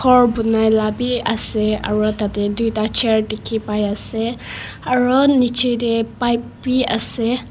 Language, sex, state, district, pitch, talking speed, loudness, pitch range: Nagamese, female, Nagaland, Kohima, 230 Hz, 135 wpm, -18 LUFS, 215-245 Hz